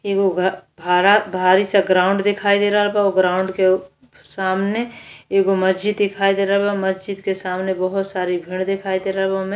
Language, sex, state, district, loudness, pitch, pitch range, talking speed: Bhojpuri, female, Uttar Pradesh, Gorakhpur, -18 LUFS, 195 Hz, 185-200 Hz, 195 wpm